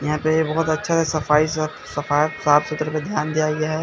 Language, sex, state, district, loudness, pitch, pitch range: Hindi, male, Bihar, Katihar, -20 LUFS, 155 Hz, 150-155 Hz